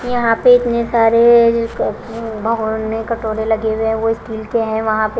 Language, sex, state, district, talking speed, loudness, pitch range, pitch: Hindi, female, Punjab, Kapurthala, 175 wpm, -16 LUFS, 220-230 Hz, 225 Hz